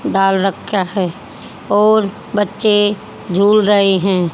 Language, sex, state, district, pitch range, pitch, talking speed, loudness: Hindi, female, Haryana, Rohtak, 190-210 Hz, 200 Hz, 110 wpm, -15 LUFS